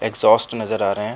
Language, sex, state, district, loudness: Hindi, male, Uttar Pradesh, Jyotiba Phule Nagar, -19 LUFS